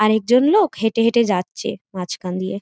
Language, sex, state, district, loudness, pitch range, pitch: Bengali, female, West Bengal, Jhargram, -19 LUFS, 185-235 Hz, 215 Hz